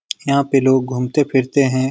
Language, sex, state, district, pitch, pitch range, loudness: Hindi, male, Bihar, Lakhisarai, 130 Hz, 130-140 Hz, -17 LUFS